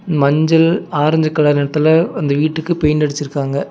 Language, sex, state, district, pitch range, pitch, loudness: Tamil, male, Tamil Nadu, Nilgiris, 145-160 Hz, 150 Hz, -15 LUFS